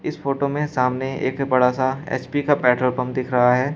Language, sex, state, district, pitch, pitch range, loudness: Hindi, male, Uttar Pradesh, Shamli, 130 Hz, 125-140 Hz, -21 LUFS